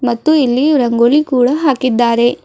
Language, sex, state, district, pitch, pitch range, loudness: Kannada, female, Karnataka, Bidar, 250 Hz, 240-285 Hz, -12 LUFS